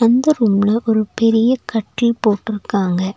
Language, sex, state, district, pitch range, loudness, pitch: Tamil, female, Tamil Nadu, Nilgiris, 205-235 Hz, -16 LUFS, 225 Hz